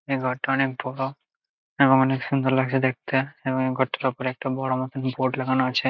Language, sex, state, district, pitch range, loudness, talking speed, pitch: Bengali, male, West Bengal, Jalpaiguri, 130-135 Hz, -24 LUFS, 185 wpm, 130 Hz